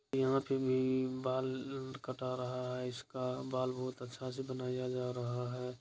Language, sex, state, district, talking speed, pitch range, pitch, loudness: Hindi, male, Bihar, Araria, 165 wpm, 125-130 Hz, 130 Hz, -38 LUFS